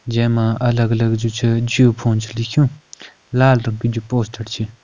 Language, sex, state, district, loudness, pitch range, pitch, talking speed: Kumaoni, male, Uttarakhand, Uttarkashi, -18 LUFS, 115-120 Hz, 115 Hz, 200 wpm